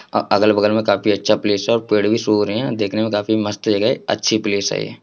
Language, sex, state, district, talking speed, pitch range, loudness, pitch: Hindi, male, Bihar, Jahanabad, 250 wpm, 105-110 Hz, -18 LUFS, 105 Hz